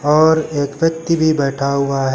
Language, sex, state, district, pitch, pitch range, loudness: Hindi, male, Uttar Pradesh, Lucknow, 145 Hz, 140-160 Hz, -16 LUFS